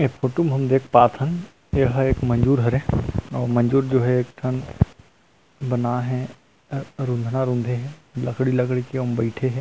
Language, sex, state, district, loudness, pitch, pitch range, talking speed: Chhattisgarhi, male, Chhattisgarh, Rajnandgaon, -22 LUFS, 130 Hz, 125-135 Hz, 160 wpm